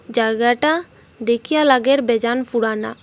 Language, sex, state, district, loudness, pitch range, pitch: Bengali, female, Assam, Hailakandi, -18 LUFS, 230-275 Hz, 240 Hz